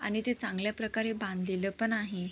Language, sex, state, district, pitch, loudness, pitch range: Marathi, female, Maharashtra, Sindhudurg, 215 Hz, -33 LUFS, 195-225 Hz